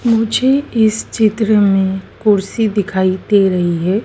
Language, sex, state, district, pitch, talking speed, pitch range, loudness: Hindi, female, Madhya Pradesh, Dhar, 210 Hz, 135 wpm, 190-225 Hz, -14 LUFS